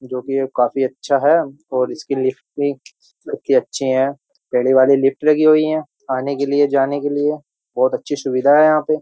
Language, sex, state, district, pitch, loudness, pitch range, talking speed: Hindi, male, Uttar Pradesh, Jyotiba Phule Nagar, 140 Hz, -17 LUFS, 130-145 Hz, 205 wpm